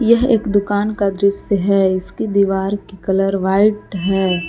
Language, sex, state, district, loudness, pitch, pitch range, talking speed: Hindi, female, Jharkhand, Palamu, -17 LUFS, 200 Hz, 195-205 Hz, 160 wpm